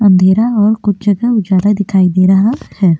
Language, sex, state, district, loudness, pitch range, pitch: Hindi, female, Goa, North and South Goa, -11 LUFS, 190-210 Hz, 200 Hz